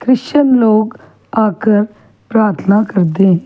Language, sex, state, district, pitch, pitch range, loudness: Hindi, female, Chhattisgarh, Kabirdham, 215 Hz, 200-225 Hz, -13 LUFS